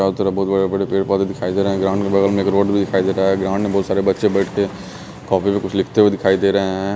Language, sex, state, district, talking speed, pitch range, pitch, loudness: Hindi, male, Bihar, West Champaran, 320 wpm, 95-100 Hz, 100 Hz, -18 LUFS